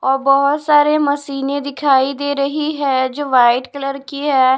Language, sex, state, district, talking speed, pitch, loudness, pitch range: Hindi, female, Punjab, Pathankot, 170 wpm, 280 Hz, -16 LUFS, 270-285 Hz